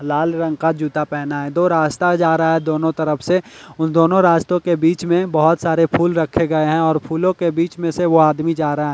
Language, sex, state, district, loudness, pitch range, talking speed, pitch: Hindi, male, Delhi, New Delhi, -17 LUFS, 155-170 Hz, 250 wpm, 160 Hz